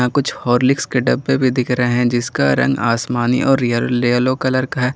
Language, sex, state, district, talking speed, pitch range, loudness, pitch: Hindi, male, Jharkhand, Garhwa, 195 wpm, 120-130 Hz, -16 LUFS, 125 Hz